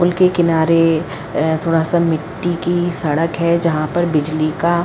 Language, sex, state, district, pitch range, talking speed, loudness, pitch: Hindi, female, Bihar, Madhepura, 160-175 Hz, 185 wpm, -17 LUFS, 165 Hz